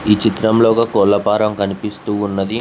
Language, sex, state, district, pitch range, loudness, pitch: Telugu, male, Telangana, Mahabubabad, 100-110 Hz, -16 LUFS, 105 Hz